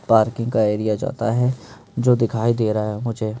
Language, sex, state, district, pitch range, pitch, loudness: Hindi, male, Madhya Pradesh, Bhopal, 110-120 Hz, 115 Hz, -20 LUFS